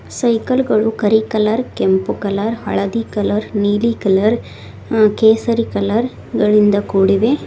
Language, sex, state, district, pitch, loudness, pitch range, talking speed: Kannada, female, Karnataka, Koppal, 215 Hz, -16 LUFS, 205-230 Hz, 120 wpm